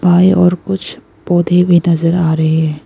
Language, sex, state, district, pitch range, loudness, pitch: Hindi, female, Arunachal Pradesh, Lower Dibang Valley, 165-180 Hz, -12 LUFS, 175 Hz